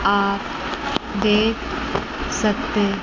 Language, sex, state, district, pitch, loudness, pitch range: Hindi, male, Chandigarh, Chandigarh, 210 Hz, -22 LUFS, 200-215 Hz